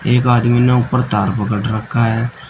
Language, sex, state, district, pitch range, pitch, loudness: Hindi, male, Uttar Pradesh, Shamli, 110-125 Hz, 120 Hz, -15 LUFS